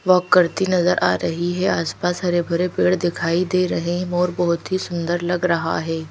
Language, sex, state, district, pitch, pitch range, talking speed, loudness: Hindi, female, Madhya Pradesh, Bhopal, 175 Hz, 170-180 Hz, 205 wpm, -20 LUFS